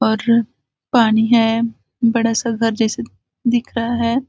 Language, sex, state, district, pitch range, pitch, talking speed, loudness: Hindi, female, Chhattisgarh, Balrampur, 225-235 Hz, 230 Hz, 140 wpm, -17 LUFS